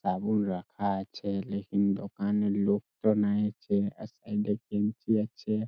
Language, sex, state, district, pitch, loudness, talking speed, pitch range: Bengali, male, West Bengal, Purulia, 105 Hz, -30 LUFS, 135 wpm, 100-105 Hz